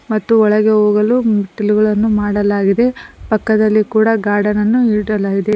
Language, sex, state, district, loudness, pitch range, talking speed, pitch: Kannada, female, Karnataka, Koppal, -14 LUFS, 210-220 Hz, 95 wpm, 215 Hz